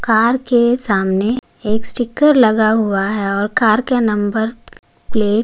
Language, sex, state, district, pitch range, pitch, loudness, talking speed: Hindi, male, Uttarakhand, Tehri Garhwal, 210-240 Hz, 220 Hz, -15 LUFS, 155 wpm